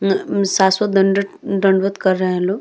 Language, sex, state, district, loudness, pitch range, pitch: Hindi, female, Uttar Pradesh, Hamirpur, -17 LUFS, 190-200 Hz, 195 Hz